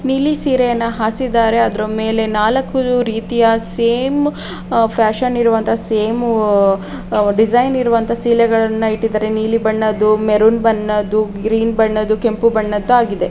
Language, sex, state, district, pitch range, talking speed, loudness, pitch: Kannada, female, Karnataka, Raichur, 215-235 Hz, 125 wpm, -15 LUFS, 225 Hz